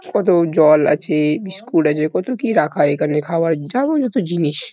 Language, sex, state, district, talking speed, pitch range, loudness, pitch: Bengali, male, West Bengal, Kolkata, 175 wpm, 150-205 Hz, -17 LUFS, 165 Hz